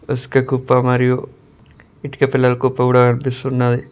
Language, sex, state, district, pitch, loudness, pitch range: Telugu, male, Telangana, Mahabubabad, 125 Hz, -16 LUFS, 125-135 Hz